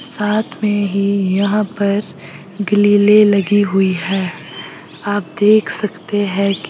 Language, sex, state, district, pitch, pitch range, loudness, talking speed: Hindi, female, Himachal Pradesh, Shimla, 200 Hz, 190-205 Hz, -15 LUFS, 115 wpm